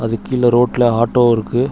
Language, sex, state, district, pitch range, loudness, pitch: Tamil, male, Tamil Nadu, Chennai, 115-125 Hz, -14 LUFS, 120 Hz